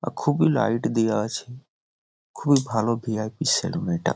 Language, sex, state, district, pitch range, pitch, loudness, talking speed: Bengali, male, West Bengal, Jhargram, 110-155 Hz, 125 Hz, -24 LUFS, 160 wpm